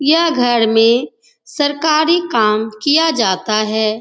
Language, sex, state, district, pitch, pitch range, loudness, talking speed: Hindi, female, Uttar Pradesh, Etah, 245 Hz, 220-320 Hz, -14 LUFS, 120 wpm